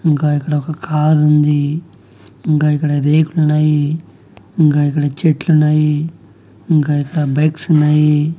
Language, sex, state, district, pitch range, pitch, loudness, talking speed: Telugu, male, Andhra Pradesh, Annamaya, 145-155 Hz, 150 Hz, -14 LUFS, 120 wpm